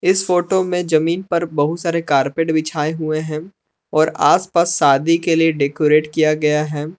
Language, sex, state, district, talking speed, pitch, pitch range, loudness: Hindi, male, Jharkhand, Palamu, 170 wpm, 160 Hz, 150-170 Hz, -17 LUFS